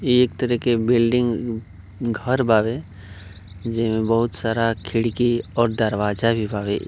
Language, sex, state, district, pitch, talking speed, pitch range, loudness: Bhojpuri, male, Uttar Pradesh, Gorakhpur, 115 Hz, 120 wpm, 105-120 Hz, -21 LUFS